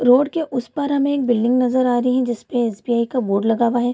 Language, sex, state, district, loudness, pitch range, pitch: Hindi, female, Bihar, Kishanganj, -19 LUFS, 235-255 Hz, 245 Hz